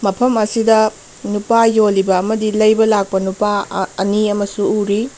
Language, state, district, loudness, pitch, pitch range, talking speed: Manipuri, Manipur, Imphal West, -15 LUFS, 210 Hz, 200-220 Hz, 140 wpm